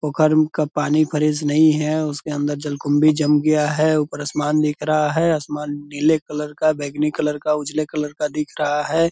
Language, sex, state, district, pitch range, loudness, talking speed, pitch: Hindi, male, Bihar, Purnia, 150-155 Hz, -20 LUFS, 195 wpm, 150 Hz